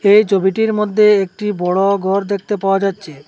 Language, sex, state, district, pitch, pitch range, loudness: Bengali, male, Assam, Hailakandi, 200 Hz, 190-210 Hz, -15 LUFS